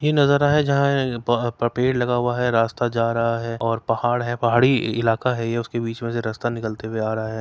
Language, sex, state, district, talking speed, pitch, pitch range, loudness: Hindi, male, Uttar Pradesh, Etah, 275 wpm, 120 Hz, 115-125 Hz, -21 LUFS